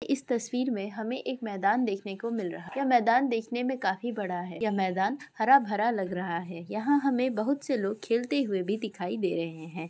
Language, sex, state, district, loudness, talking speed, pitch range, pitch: Hindi, female, Uttar Pradesh, Muzaffarnagar, -29 LUFS, 225 wpm, 195-255 Hz, 225 Hz